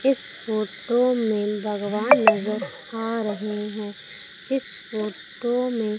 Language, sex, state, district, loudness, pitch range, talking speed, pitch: Hindi, female, Madhya Pradesh, Umaria, -24 LUFS, 210-240 Hz, 110 wpm, 215 Hz